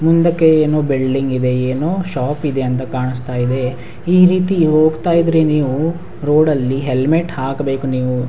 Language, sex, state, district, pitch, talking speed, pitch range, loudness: Kannada, male, Karnataka, Raichur, 145 Hz, 125 wpm, 130-160 Hz, -15 LUFS